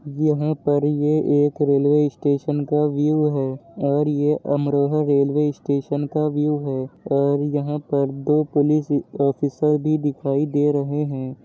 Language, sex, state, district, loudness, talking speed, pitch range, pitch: Hindi, male, Uttar Pradesh, Jyotiba Phule Nagar, -21 LUFS, 145 wpm, 140-150 Hz, 145 Hz